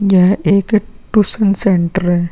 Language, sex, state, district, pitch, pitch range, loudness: Hindi, female, Bihar, Vaishali, 195 Hz, 185-210 Hz, -13 LUFS